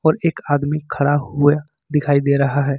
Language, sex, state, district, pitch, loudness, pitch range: Hindi, male, Jharkhand, Ranchi, 145 Hz, -18 LUFS, 140-150 Hz